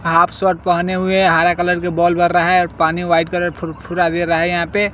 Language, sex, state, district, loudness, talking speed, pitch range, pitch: Hindi, male, Bihar, West Champaran, -16 LUFS, 270 wpm, 170-180 Hz, 175 Hz